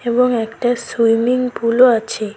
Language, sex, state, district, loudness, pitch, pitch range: Bengali, female, West Bengal, Cooch Behar, -16 LUFS, 235 Hz, 225-245 Hz